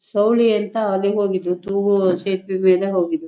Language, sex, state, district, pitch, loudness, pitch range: Kannada, female, Karnataka, Shimoga, 195 Hz, -19 LUFS, 185-205 Hz